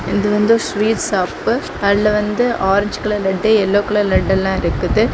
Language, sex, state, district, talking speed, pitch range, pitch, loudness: Tamil, female, Tamil Nadu, Kanyakumari, 175 wpm, 200-210 Hz, 210 Hz, -16 LUFS